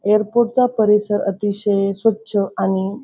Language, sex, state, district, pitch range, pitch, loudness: Marathi, female, Maharashtra, Pune, 200-220 Hz, 210 Hz, -18 LUFS